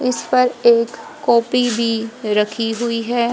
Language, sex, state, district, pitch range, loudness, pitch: Hindi, female, Haryana, Jhajjar, 225-240 Hz, -17 LUFS, 235 Hz